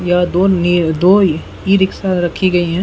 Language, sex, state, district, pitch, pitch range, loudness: Hindi, male, Bihar, Saran, 180 Hz, 175-190 Hz, -14 LUFS